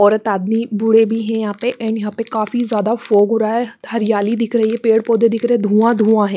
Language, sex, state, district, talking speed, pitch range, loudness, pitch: Hindi, female, Haryana, Charkhi Dadri, 265 wpm, 215-230 Hz, -16 LUFS, 225 Hz